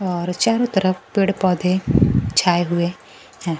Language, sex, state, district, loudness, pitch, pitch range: Hindi, female, Bihar, Kaimur, -19 LUFS, 180 Hz, 175-190 Hz